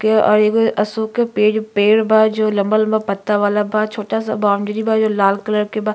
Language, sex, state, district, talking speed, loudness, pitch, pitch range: Bhojpuri, female, Uttar Pradesh, Gorakhpur, 210 wpm, -16 LUFS, 215 Hz, 210-220 Hz